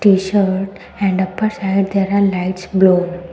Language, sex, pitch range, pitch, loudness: English, female, 185-195 Hz, 195 Hz, -16 LUFS